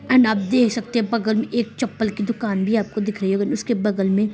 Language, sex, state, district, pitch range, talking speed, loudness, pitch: Hindi, female, Bihar, Sitamarhi, 210-235 Hz, 265 wpm, -21 LUFS, 220 Hz